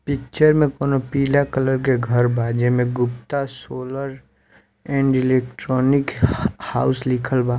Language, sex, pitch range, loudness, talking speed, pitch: Bhojpuri, male, 125-140 Hz, -20 LUFS, 105 wpm, 130 Hz